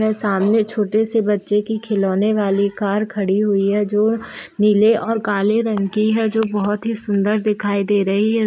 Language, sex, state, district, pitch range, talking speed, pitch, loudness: Hindi, female, Bihar, Gopalganj, 200-220 Hz, 185 wpm, 210 Hz, -18 LUFS